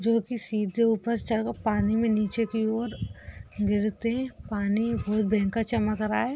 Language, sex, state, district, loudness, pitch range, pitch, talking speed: Hindi, female, Bihar, East Champaran, -27 LUFS, 210-230 Hz, 220 Hz, 170 wpm